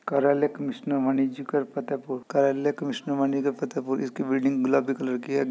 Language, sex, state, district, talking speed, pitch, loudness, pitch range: Hindi, male, Uttar Pradesh, Hamirpur, 150 wpm, 135 Hz, -26 LUFS, 135-140 Hz